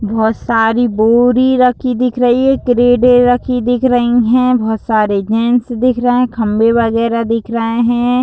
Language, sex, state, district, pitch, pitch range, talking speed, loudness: Hindi, female, Uttar Pradesh, Deoria, 240 Hz, 230-245 Hz, 165 wpm, -12 LUFS